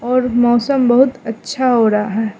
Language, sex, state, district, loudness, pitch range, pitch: Hindi, female, Mizoram, Aizawl, -14 LUFS, 225-255 Hz, 240 Hz